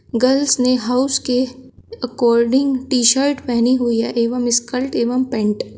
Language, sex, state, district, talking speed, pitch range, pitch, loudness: Hindi, male, Uttar Pradesh, Shamli, 155 wpm, 235-260 Hz, 250 Hz, -17 LUFS